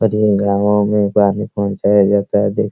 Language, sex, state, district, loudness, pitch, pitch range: Hindi, male, Bihar, Araria, -15 LUFS, 105 Hz, 100-105 Hz